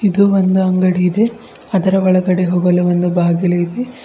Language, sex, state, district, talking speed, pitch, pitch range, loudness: Kannada, female, Karnataka, Bidar, 150 wpm, 185 Hz, 180-200 Hz, -14 LUFS